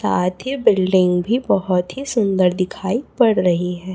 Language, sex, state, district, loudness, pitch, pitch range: Hindi, female, Chhattisgarh, Raipur, -18 LUFS, 185 Hz, 180-240 Hz